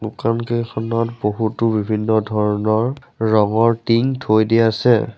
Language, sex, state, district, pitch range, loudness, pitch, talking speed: Assamese, male, Assam, Sonitpur, 110-115 Hz, -18 LUFS, 110 Hz, 115 wpm